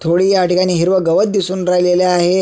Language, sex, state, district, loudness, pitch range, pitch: Marathi, male, Maharashtra, Sindhudurg, -14 LUFS, 180-190 Hz, 180 Hz